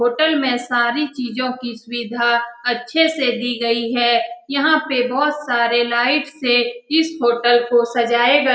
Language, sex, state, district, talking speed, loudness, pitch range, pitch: Hindi, female, Bihar, Saran, 160 wpm, -17 LUFS, 240-280 Hz, 245 Hz